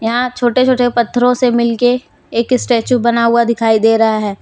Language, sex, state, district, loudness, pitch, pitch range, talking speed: Hindi, female, Jharkhand, Deoghar, -13 LUFS, 235 Hz, 230-245 Hz, 190 wpm